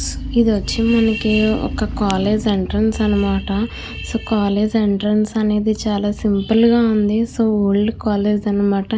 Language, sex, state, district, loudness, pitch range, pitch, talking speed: Telugu, female, Andhra Pradesh, Krishna, -17 LUFS, 205-220 Hz, 215 Hz, 105 wpm